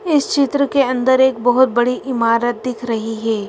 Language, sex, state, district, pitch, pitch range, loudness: Hindi, female, Madhya Pradesh, Bhopal, 250 Hz, 230-265 Hz, -16 LUFS